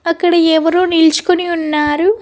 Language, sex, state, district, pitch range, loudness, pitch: Telugu, female, Andhra Pradesh, Annamaya, 320-355 Hz, -13 LUFS, 335 Hz